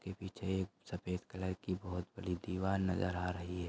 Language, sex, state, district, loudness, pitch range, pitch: Hindi, male, Chhattisgarh, Sarguja, -40 LUFS, 90-95 Hz, 90 Hz